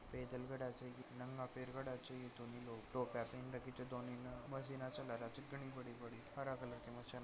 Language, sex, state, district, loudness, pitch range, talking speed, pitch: Marwari, male, Rajasthan, Nagaur, -49 LUFS, 120-130 Hz, 65 wpm, 125 Hz